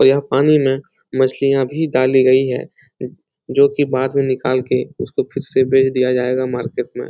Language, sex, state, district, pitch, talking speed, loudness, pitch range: Hindi, male, Bihar, Supaul, 130 Hz, 195 wpm, -17 LUFS, 130-140 Hz